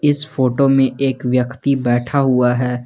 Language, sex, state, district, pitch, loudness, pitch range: Hindi, male, Jharkhand, Garhwa, 130 Hz, -16 LUFS, 125-140 Hz